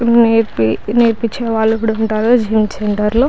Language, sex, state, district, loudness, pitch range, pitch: Telugu, female, Andhra Pradesh, Chittoor, -14 LUFS, 215-235 Hz, 225 Hz